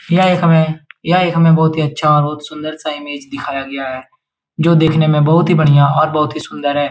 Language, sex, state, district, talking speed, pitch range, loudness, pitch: Hindi, male, Bihar, Jahanabad, 235 wpm, 150-165 Hz, -14 LUFS, 155 Hz